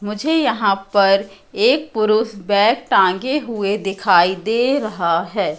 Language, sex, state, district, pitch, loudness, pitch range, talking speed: Hindi, female, Madhya Pradesh, Katni, 205 Hz, -17 LUFS, 195-235 Hz, 130 wpm